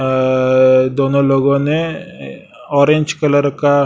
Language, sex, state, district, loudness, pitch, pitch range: Hindi, male, Chhattisgarh, Raipur, -14 LUFS, 140 Hz, 130-145 Hz